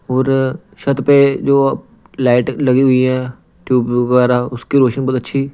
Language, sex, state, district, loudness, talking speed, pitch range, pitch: Hindi, male, Punjab, Pathankot, -14 LUFS, 150 wpm, 125-140 Hz, 130 Hz